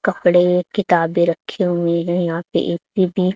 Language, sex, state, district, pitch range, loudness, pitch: Hindi, female, Haryana, Charkhi Dadri, 170-185 Hz, -18 LUFS, 175 Hz